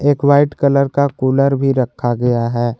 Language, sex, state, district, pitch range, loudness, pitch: Hindi, male, Jharkhand, Garhwa, 125-140 Hz, -15 LUFS, 135 Hz